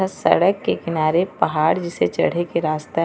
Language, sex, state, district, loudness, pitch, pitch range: Chhattisgarhi, female, Chhattisgarh, Raigarh, -20 LUFS, 170 Hz, 155-180 Hz